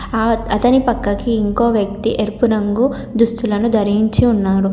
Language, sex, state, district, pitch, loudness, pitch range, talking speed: Telugu, female, Telangana, Komaram Bheem, 220 Hz, -16 LUFS, 205-235 Hz, 125 wpm